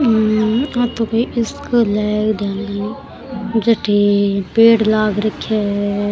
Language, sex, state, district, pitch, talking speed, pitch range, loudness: Rajasthani, female, Rajasthan, Churu, 215 Hz, 125 wpm, 205-230 Hz, -16 LUFS